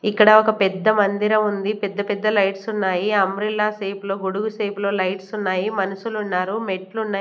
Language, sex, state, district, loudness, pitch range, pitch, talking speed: Telugu, female, Andhra Pradesh, Manyam, -20 LUFS, 195-215 Hz, 205 Hz, 160 wpm